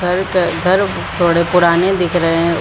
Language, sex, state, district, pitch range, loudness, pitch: Hindi, female, Bihar, Supaul, 170-185 Hz, -14 LUFS, 175 Hz